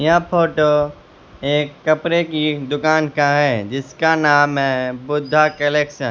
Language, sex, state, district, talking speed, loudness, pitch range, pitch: Hindi, male, Bihar, West Champaran, 135 wpm, -17 LUFS, 145-155 Hz, 150 Hz